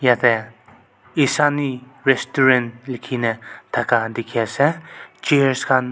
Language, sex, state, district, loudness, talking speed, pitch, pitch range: Nagamese, male, Nagaland, Kohima, -19 LUFS, 100 wpm, 125 Hz, 115-135 Hz